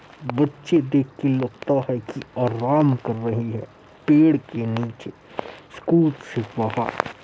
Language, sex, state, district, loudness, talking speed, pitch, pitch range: Hindi, male, Uttar Pradesh, Muzaffarnagar, -22 LUFS, 130 wpm, 125 Hz, 115-145 Hz